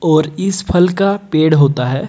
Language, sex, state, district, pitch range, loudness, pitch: Hindi, male, Jharkhand, Deoghar, 155-190 Hz, -14 LUFS, 160 Hz